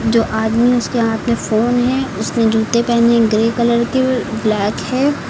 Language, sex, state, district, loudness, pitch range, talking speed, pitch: Hindi, female, Uttar Pradesh, Lucknow, -15 LUFS, 225-245 Hz, 170 wpm, 235 Hz